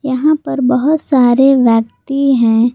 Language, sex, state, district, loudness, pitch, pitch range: Hindi, female, Jharkhand, Garhwa, -12 LUFS, 265 Hz, 240-280 Hz